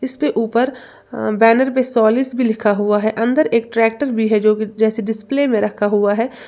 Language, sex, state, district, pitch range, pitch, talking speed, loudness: Hindi, female, Uttar Pradesh, Lalitpur, 215-255 Hz, 225 Hz, 205 wpm, -16 LUFS